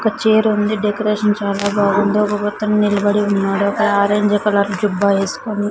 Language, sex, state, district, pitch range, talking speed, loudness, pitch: Telugu, female, Andhra Pradesh, Sri Satya Sai, 200-210 Hz, 135 wpm, -16 LUFS, 205 Hz